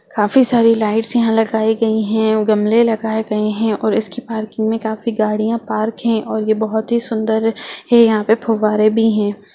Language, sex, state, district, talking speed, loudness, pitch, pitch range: Hindi, female, Bihar, Jahanabad, 190 wpm, -16 LUFS, 220 Hz, 215-225 Hz